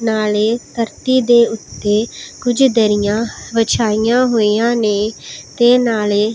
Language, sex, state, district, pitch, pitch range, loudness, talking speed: Punjabi, female, Punjab, Pathankot, 225 Hz, 215-240 Hz, -15 LUFS, 115 wpm